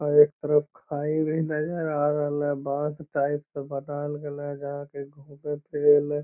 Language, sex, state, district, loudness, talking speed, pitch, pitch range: Magahi, male, Bihar, Lakhisarai, -26 LUFS, 135 wpm, 145 Hz, 145-150 Hz